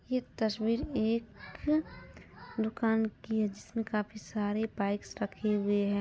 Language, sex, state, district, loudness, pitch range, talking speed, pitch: Hindi, female, Bihar, Madhepura, -33 LUFS, 210-225 Hz, 130 wpm, 220 Hz